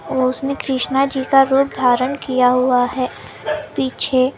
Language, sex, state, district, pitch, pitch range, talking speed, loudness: Hindi, female, Maharashtra, Gondia, 260 Hz, 255-270 Hz, 135 wpm, -17 LUFS